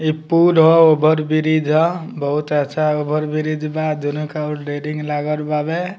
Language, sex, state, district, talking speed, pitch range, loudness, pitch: Bhojpuri, male, Bihar, Muzaffarpur, 160 wpm, 150-155 Hz, -17 LUFS, 155 Hz